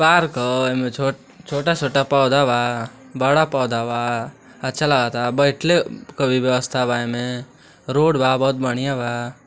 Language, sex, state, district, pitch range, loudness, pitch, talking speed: Bhojpuri, male, Uttar Pradesh, Deoria, 125-140 Hz, -19 LUFS, 130 Hz, 150 wpm